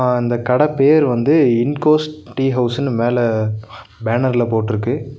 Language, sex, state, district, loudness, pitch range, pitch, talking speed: Tamil, male, Tamil Nadu, Nilgiris, -16 LUFS, 115-140 Hz, 120 Hz, 125 wpm